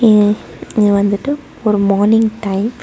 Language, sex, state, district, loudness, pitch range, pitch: Tamil, female, Tamil Nadu, Nilgiris, -15 LUFS, 200-225 Hz, 210 Hz